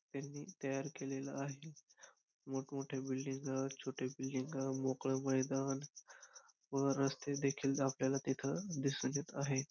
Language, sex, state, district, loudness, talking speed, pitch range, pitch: Marathi, male, Maharashtra, Dhule, -40 LUFS, 110 wpm, 135-140 Hz, 135 Hz